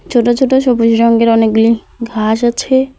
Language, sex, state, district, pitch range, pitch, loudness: Bengali, female, West Bengal, Alipurduar, 230-250 Hz, 235 Hz, -12 LUFS